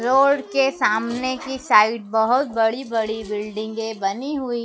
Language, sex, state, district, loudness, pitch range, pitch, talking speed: Hindi, female, Madhya Pradesh, Dhar, -21 LUFS, 220-265 Hz, 235 Hz, 155 wpm